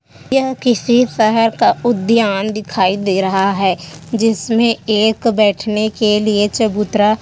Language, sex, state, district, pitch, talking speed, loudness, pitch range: Hindi, female, Chhattisgarh, Kabirdham, 215 Hz, 135 wpm, -15 LUFS, 200-230 Hz